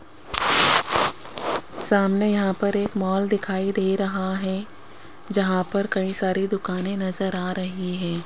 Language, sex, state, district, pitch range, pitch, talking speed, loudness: Hindi, female, Rajasthan, Jaipur, 185-200 Hz, 195 Hz, 130 wpm, -23 LUFS